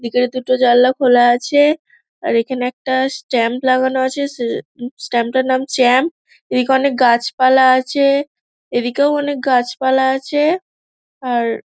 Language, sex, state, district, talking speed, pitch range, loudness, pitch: Bengali, female, West Bengal, Dakshin Dinajpur, 135 wpm, 245-275 Hz, -15 LUFS, 260 Hz